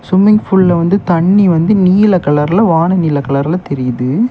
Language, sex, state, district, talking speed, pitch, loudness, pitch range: Tamil, male, Tamil Nadu, Kanyakumari, 155 wpm, 180 Hz, -11 LUFS, 150-195 Hz